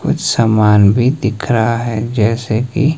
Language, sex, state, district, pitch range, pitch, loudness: Hindi, male, Himachal Pradesh, Shimla, 110-125 Hz, 115 Hz, -14 LUFS